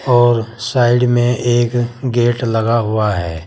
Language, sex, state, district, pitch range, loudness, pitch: Hindi, male, Uttar Pradesh, Saharanpur, 115-120 Hz, -15 LUFS, 120 Hz